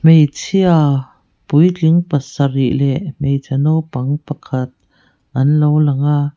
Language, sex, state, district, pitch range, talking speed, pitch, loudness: Mizo, female, Mizoram, Aizawl, 135-155 Hz, 105 wpm, 145 Hz, -15 LUFS